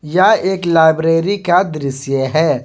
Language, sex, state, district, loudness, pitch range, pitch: Hindi, male, Jharkhand, Garhwa, -14 LUFS, 150-185 Hz, 165 Hz